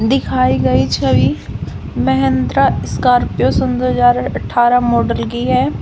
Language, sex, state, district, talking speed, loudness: Hindi, female, Uttar Pradesh, Shamli, 125 wpm, -14 LUFS